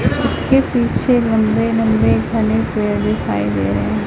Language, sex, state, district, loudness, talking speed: Hindi, female, Chhattisgarh, Raipur, -16 LUFS, 145 wpm